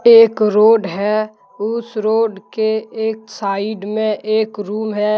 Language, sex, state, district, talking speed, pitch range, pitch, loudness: Hindi, male, Jharkhand, Deoghar, 140 wpm, 210-220 Hz, 215 Hz, -17 LUFS